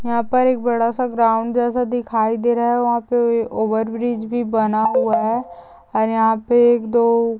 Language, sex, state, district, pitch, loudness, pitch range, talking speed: Hindi, female, Maharashtra, Nagpur, 235 Hz, -18 LUFS, 225-240 Hz, 185 wpm